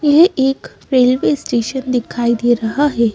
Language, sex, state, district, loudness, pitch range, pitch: Hindi, female, Madhya Pradesh, Bhopal, -15 LUFS, 235-270 Hz, 255 Hz